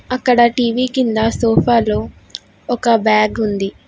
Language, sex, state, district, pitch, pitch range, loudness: Telugu, female, Telangana, Hyderabad, 225 Hz, 200-245 Hz, -15 LUFS